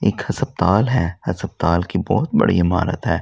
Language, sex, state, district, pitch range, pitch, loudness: Hindi, male, Delhi, New Delhi, 85-95 Hz, 90 Hz, -19 LUFS